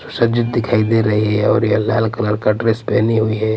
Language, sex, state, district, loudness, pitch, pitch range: Hindi, male, Punjab, Pathankot, -16 LUFS, 110 Hz, 105-115 Hz